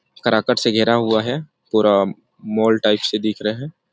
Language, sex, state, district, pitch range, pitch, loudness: Hindi, male, Chhattisgarh, Sarguja, 105-120 Hz, 110 Hz, -18 LUFS